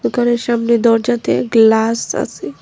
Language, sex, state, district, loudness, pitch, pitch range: Bengali, female, Tripura, West Tripura, -15 LUFS, 235 Hz, 230-240 Hz